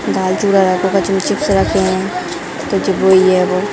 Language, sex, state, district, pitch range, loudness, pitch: Hindi, female, Bihar, Darbhanga, 185-195 Hz, -14 LUFS, 185 Hz